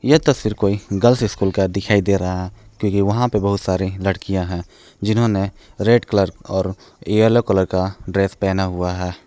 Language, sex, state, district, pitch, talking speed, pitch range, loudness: Hindi, male, Jharkhand, Palamu, 100 Hz, 190 wpm, 95-105 Hz, -19 LUFS